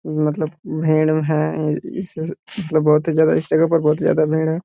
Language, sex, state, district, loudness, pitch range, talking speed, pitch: Hindi, male, Jharkhand, Jamtara, -19 LUFS, 155-160 Hz, 230 wpm, 155 Hz